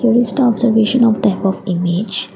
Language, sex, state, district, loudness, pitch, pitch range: English, female, Assam, Kamrup Metropolitan, -15 LUFS, 220 Hz, 190-235 Hz